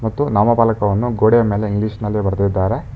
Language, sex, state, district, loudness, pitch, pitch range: Kannada, male, Karnataka, Bangalore, -16 LUFS, 110 Hz, 100-115 Hz